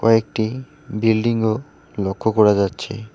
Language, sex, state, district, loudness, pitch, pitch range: Bengali, male, West Bengal, Alipurduar, -19 LUFS, 110 Hz, 105-115 Hz